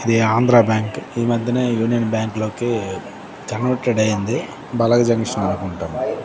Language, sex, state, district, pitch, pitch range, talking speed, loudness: Telugu, male, Andhra Pradesh, Srikakulam, 115 Hz, 110-120 Hz, 125 wpm, -19 LUFS